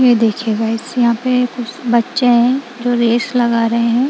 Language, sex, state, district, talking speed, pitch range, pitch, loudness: Hindi, female, Punjab, Kapurthala, 190 wpm, 235-250 Hz, 240 Hz, -15 LUFS